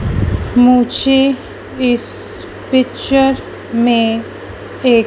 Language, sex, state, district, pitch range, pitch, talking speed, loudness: Hindi, female, Madhya Pradesh, Dhar, 235-270 Hz, 250 Hz, 60 wpm, -14 LUFS